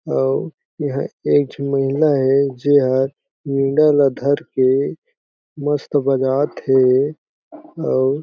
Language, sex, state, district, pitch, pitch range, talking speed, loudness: Chhattisgarhi, male, Chhattisgarh, Jashpur, 140 Hz, 135-145 Hz, 90 wpm, -18 LUFS